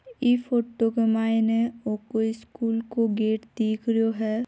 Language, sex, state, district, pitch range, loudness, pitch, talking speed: Marwari, female, Rajasthan, Nagaur, 220-235 Hz, -25 LUFS, 225 Hz, 160 wpm